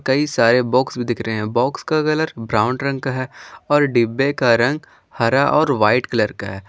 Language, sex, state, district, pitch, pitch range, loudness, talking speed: Hindi, male, Jharkhand, Garhwa, 125 Hz, 115-145 Hz, -18 LUFS, 215 wpm